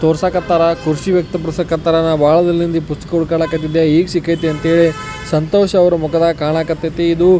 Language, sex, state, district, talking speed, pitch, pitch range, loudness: Kannada, male, Karnataka, Belgaum, 180 wpm, 165 Hz, 160-170 Hz, -14 LUFS